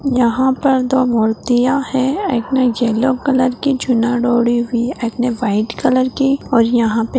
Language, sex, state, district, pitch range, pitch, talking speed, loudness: Hindi, female, Bihar, Jahanabad, 235-265 Hz, 250 Hz, 185 wpm, -16 LUFS